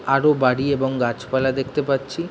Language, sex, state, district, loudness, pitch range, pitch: Bengali, male, West Bengal, Jhargram, -21 LUFS, 130-140 Hz, 135 Hz